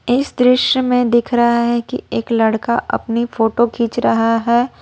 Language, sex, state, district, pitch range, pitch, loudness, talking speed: Hindi, female, Jharkhand, Ranchi, 230-245 Hz, 235 Hz, -16 LUFS, 175 wpm